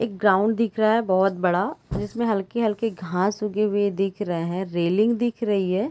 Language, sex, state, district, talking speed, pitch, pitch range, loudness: Hindi, female, Bihar, Sitamarhi, 205 wpm, 205 Hz, 190-220 Hz, -23 LUFS